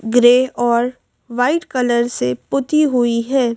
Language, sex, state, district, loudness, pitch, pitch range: Hindi, female, Madhya Pradesh, Bhopal, -16 LUFS, 245 Hz, 235-260 Hz